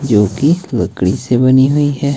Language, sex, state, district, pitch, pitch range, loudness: Hindi, male, Himachal Pradesh, Shimla, 130 Hz, 105-140 Hz, -13 LUFS